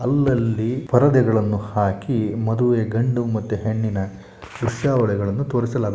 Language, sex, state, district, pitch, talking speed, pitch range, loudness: Kannada, male, Karnataka, Shimoga, 115 Hz, 90 wpm, 105-125 Hz, -21 LUFS